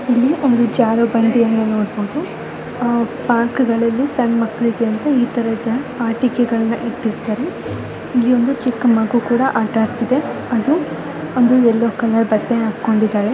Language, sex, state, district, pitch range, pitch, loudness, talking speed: Kannada, female, Karnataka, Bellary, 225-250 Hz, 235 Hz, -17 LUFS, 120 wpm